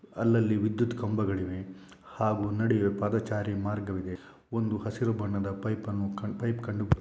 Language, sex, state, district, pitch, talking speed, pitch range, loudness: Kannada, male, Karnataka, Shimoga, 105 Hz, 120 wpm, 100-110 Hz, -30 LUFS